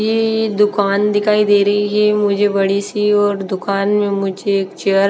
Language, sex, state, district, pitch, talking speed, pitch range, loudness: Hindi, female, Bihar, West Champaran, 205 Hz, 190 wpm, 200-210 Hz, -15 LUFS